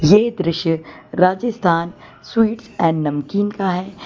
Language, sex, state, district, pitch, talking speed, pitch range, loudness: Hindi, female, Gujarat, Valsad, 185 Hz, 120 wpm, 165-205 Hz, -19 LUFS